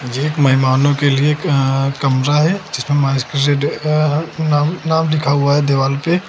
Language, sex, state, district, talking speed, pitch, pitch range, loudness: Hindi, male, Uttar Pradesh, Lucknow, 155 wpm, 145 Hz, 135-155 Hz, -15 LUFS